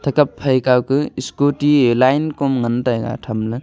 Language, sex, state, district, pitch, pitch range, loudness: Wancho, male, Arunachal Pradesh, Longding, 130 Hz, 120-145 Hz, -17 LUFS